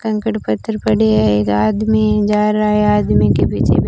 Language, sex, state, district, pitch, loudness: Hindi, female, Rajasthan, Bikaner, 110 Hz, -15 LUFS